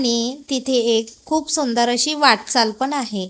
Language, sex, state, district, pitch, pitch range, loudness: Marathi, female, Maharashtra, Gondia, 250 Hz, 235-280 Hz, -18 LUFS